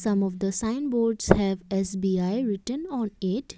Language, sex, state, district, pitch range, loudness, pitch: English, female, Assam, Kamrup Metropolitan, 195-230 Hz, -26 LUFS, 200 Hz